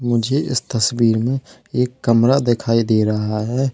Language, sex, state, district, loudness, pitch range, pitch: Hindi, male, Uttar Pradesh, Lalitpur, -18 LUFS, 115-125 Hz, 120 Hz